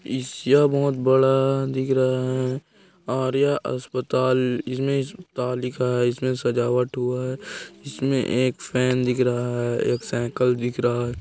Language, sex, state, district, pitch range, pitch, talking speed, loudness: Hindi, male, Chhattisgarh, Korba, 125-135 Hz, 130 Hz, 155 wpm, -23 LUFS